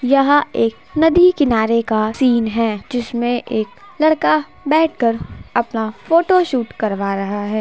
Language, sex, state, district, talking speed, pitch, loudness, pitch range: Hindi, female, Bihar, Darbhanga, 135 wpm, 240 Hz, -17 LUFS, 220-305 Hz